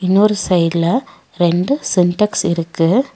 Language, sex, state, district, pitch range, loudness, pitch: Tamil, female, Tamil Nadu, Nilgiris, 170-210 Hz, -16 LUFS, 180 Hz